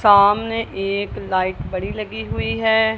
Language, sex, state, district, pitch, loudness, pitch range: Hindi, female, Punjab, Kapurthala, 205 Hz, -20 LUFS, 195-220 Hz